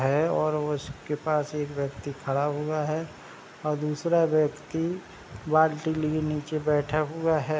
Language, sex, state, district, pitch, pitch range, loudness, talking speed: Hindi, male, Bihar, Begusarai, 150 Hz, 150-155 Hz, -27 LUFS, 140 wpm